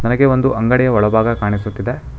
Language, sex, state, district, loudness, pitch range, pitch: Kannada, male, Karnataka, Bangalore, -15 LUFS, 105-130 Hz, 115 Hz